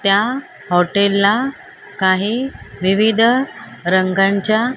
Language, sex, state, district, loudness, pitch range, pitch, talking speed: Marathi, female, Maharashtra, Mumbai Suburban, -16 LUFS, 190-240 Hz, 200 Hz, 90 wpm